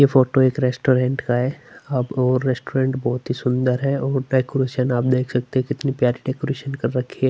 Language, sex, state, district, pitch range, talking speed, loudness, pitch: Hindi, male, Chhattisgarh, Sukma, 125-135 Hz, 195 wpm, -21 LUFS, 130 Hz